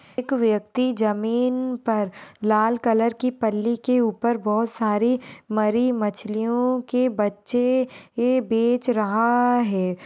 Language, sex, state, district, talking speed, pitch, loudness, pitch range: Hindi, female, Chhattisgarh, Raigarh, 115 wpm, 230 Hz, -22 LUFS, 215-245 Hz